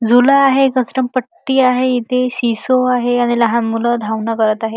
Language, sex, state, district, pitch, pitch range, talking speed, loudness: Marathi, male, Maharashtra, Chandrapur, 245 Hz, 230-255 Hz, 175 wpm, -15 LUFS